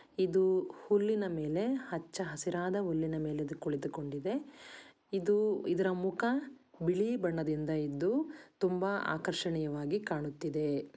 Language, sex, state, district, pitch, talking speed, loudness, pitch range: Kannada, female, Karnataka, Dakshina Kannada, 180 Hz, 105 wpm, -34 LUFS, 155-205 Hz